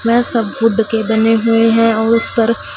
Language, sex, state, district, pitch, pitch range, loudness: Hindi, female, Punjab, Fazilka, 230 Hz, 225-230 Hz, -13 LUFS